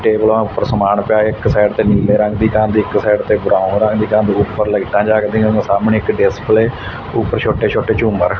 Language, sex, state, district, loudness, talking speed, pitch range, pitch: Punjabi, male, Punjab, Fazilka, -14 LUFS, 215 wpm, 105-110 Hz, 105 Hz